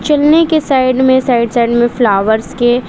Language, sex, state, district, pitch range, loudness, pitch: Hindi, female, Bihar, West Champaran, 240-265 Hz, -11 LUFS, 250 Hz